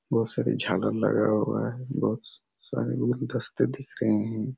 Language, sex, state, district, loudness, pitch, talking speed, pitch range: Hindi, male, Chhattisgarh, Raigarh, -27 LUFS, 110 Hz, 155 wpm, 105-125 Hz